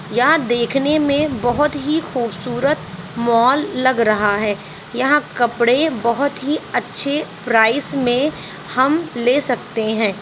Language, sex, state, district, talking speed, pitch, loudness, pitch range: Hindi, female, Uttar Pradesh, Ghazipur, 125 wpm, 245 Hz, -17 LUFS, 230-285 Hz